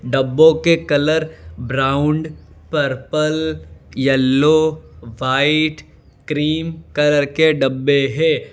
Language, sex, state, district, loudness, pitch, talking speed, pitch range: Hindi, male, Gujarat, Valsad, -17 LUFS, 145 Hz, 85 wpm, 135-155 Hz